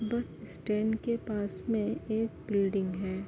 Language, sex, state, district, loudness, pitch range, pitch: Hindi, female, Uttar Pradesh, Varanasi, -32 LUFS, 195-225 Hz, 210 Hz